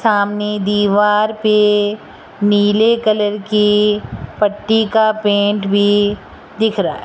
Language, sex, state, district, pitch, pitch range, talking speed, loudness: Hindi, female, Rajasthan, Jaipur, 210 Hz, 205-215 Hz, 110 wpm, -15 LUFS